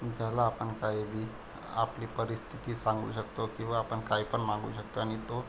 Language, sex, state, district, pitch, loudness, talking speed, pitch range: Marathi, male, Maharashtra, Pune, 110 Hz, -34 LUFS, 175 wpm, 110-115 Hz